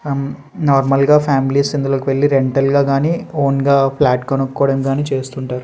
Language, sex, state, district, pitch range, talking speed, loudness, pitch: Telugu, male, Andhra Pradesh, Srikakulam, 135-140 Hz, 150 wpm, -15 LUFS, 135 Hz